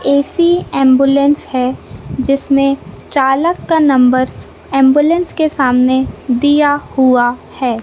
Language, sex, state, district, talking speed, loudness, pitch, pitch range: Hindi, male, Madhya Pradesh, Katni, 100 wpm, -13 LUFS, 275 Hz, 260-290 Hz